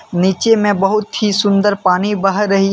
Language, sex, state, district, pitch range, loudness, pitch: Hindi, male, Jharkhand, Deoghar, 195-210 Hz, -14 LUFS, 200 Hz